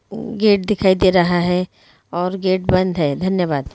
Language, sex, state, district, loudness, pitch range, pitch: Hindi, female, Bihar, Begusarai, -17 LUFS, 180-195 Hz, 185 Hz